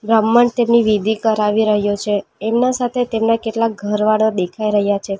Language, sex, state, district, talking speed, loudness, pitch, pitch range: Gujarati, female, Gujarat, Valsad, 160 wpm, -16 LUFS, 220 Hz, 205-230 Hz